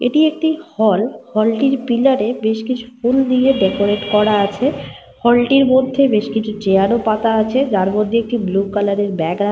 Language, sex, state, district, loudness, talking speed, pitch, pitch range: Bengali, female, Jharkhand, Sahebganj, -16 LUFS, 210 wpm, 225 Hz, 205-255 Hz